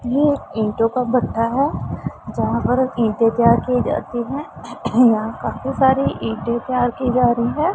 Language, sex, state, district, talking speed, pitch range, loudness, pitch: Hindi, female, Punjab, Pathankot, 165 wpm, 230-260 Hz, -19 LUFS, 245 Hz